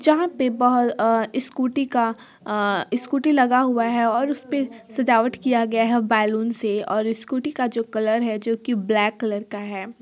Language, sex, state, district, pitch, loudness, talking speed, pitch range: Hindi, female, Bihar, Samastipur, 230 Hz, -22 LUFS, 175 wpm, 220-255 Hz